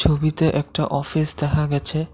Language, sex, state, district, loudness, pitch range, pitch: Bengali, male, Assam, Kamrup Metropolitan, -21 LUFS, 145-155 Hz, 150 Hz